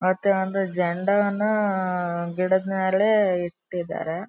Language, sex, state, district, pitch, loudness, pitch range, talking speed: Kannada, female, Karnataka, Dharwad, 190 Hz, -23 LUFS, 180-200 Hz, 85 wpm